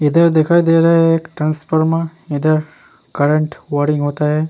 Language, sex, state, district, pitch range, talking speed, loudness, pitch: Hindi, male, Bihar, Vaishali, 150-165 Hz, 160 wpm, -15 LUFS, 155 Hz